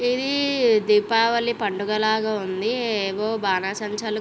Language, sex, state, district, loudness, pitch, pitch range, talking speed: Telugu, female, Andhra Pradesh, Visakhapatnam, -22 LUFS, 215 Hz, 210-235 Hz, 100 wpm